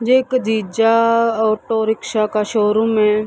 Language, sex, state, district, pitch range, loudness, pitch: Hindi, female, Bihar, East Champaran, 215-230 Hz, -16 LUFS, 220 Hz